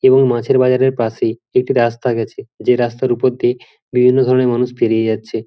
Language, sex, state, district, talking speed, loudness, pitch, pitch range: Bengali, male, West Bengal, Jhargram, 175 wpm, -15 LUFS, 125 Hz, 115-130 Hz